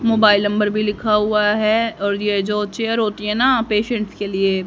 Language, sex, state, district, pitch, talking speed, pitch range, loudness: Hindi, female, Haryana, Rohtak, 210 Hz, 205 wpm, 205-220 Hz, -18 LUFS